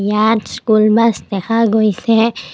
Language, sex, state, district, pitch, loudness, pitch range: Assamese, female, Assam, Kamrup Metropolitan, 220 Hz, -14 LUFS, 205-225 Hz